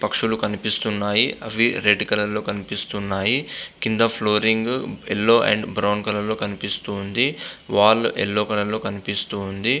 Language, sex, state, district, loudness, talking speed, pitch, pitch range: Telugu, male, Andhra Pradesh, Visakhapatnam, -21 LUFS, 120 wpm, 105 Hz, 105-110 Hz